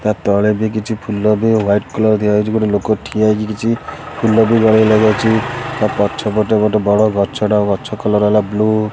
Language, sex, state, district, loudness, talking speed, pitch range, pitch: Odia, male, Odisha, Khordha, -14 LUFS, 170 wpm, 105-110 Hz, 110 Hz